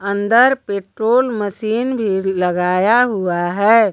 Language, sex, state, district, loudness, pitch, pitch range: Hindi, female, Jharkhand, Garhwa, -16 LUFS, 210 Hz, 190-235 Hz